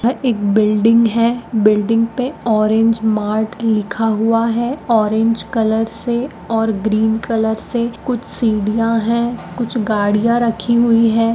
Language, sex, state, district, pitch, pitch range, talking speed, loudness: Magahi, female, Bihar, Gaya, 225 Hz, 220-235 Hz, 135 wpm, -16 LUFS